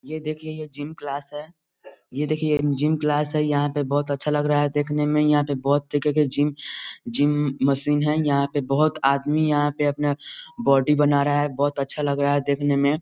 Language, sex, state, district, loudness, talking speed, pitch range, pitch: Hindi, male, Bihar, East Champaran, -22 LUFS, 215 wpm, 140-150 Hz, 145 Hz